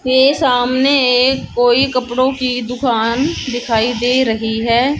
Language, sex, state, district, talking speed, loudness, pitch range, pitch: Hindi, female, Haryana, Jhajjar, 120 wpm, -14 LUFS, 240-260 Hz, 250 Hz